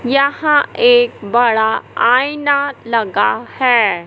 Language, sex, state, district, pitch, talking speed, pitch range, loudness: Hindi, male, Madhya Pradesh, Katni, 265 Hz, 90 wpm, 230-290 Hz, -14 LUFS